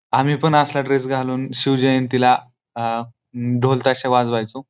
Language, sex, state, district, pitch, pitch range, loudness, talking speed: Marathi, male, Maharashtra, Pune, 130 Hz, 125-135 Hz, -19 LUFS, 155 wpm